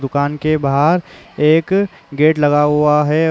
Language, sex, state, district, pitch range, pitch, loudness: Hindi, male, Uttar Pradesh, Jalaun, 145-160 Hz, 150 Hz, -15 LUFS